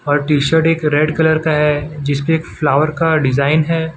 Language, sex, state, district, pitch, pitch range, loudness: Hindi, male, Gujarat, Valsad, 155 Hz, 145-160 Hz, -15 LUFS